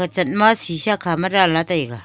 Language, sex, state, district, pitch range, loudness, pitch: Wancho, female, Arunachal Pradesh, Longding, 165-195 Hz, -17 LUFS, 180 Hz